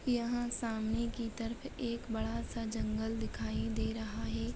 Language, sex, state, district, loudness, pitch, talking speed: Hindi, female, Maharashtra, Solapur, -37 LUFS, 225 Hz, 160 wpm